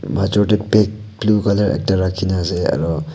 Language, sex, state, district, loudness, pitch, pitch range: Nagamese, male, Nagaland, Kohima, -17 LUFS, 100 Hz, 95-105 Hz